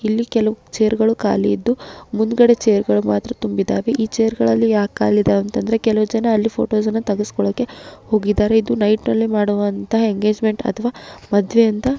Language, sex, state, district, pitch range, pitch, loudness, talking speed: Kannada, female, Karnataka, Gulbarga, 205-225 Hz, 215 Hz, -18 LUFS, 170 wpm